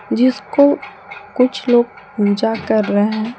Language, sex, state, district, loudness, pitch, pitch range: Hindi, female, Jharkhand, Palamu, -16 LUFS, 220 Hz, 205-250 Hz